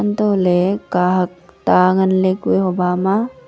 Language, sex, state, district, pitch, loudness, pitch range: Wancho, female, Arunachal Pradesh, Longding, 185 Hz, -16 LUFS, 180-195 Hz